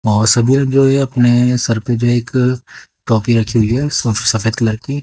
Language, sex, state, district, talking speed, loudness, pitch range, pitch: Hindi, female, Haryana, Jhajjar, 165 wpm, -14 LUFS, 115-130 Hz, 120 Hz